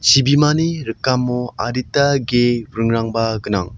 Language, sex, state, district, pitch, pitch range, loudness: Garo, male, Meghalaya, South Garo Hills, 120 Hz, 115-135 Hz, -17 LUFS